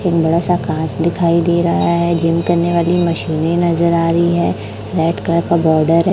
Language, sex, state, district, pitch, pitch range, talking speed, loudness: Hindi, female, Chhattisgarh, Raipur, 170 Hz, 165-170 Hz, 195 wpm, -15 LUFS